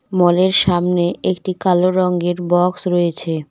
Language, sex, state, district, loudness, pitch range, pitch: Bengali, female, West Bengal, Cooch Behar, -16 LUFS, 175-185 Hz, 180 Hz